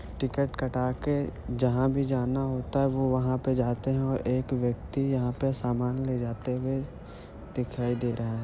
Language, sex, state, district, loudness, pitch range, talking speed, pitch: Hindi, male, Uttar Pradesh, Jyotiba Phule Nagar, -29 LUFS, 125-135 Hz, 165 wpm, 130 Hz